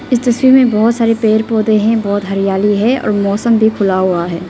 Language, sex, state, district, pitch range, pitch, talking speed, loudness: Hindi, female, Arunachal Pradesh, Lower Dibang Valley, 200-230 Hz, 220 Hz, 225 wpm, -12 LUFS